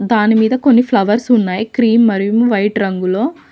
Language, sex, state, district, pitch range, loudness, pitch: Telugu, female, Telangana, Mahabubabad, 205-240 Hz, -13 LUFS, 225 Hz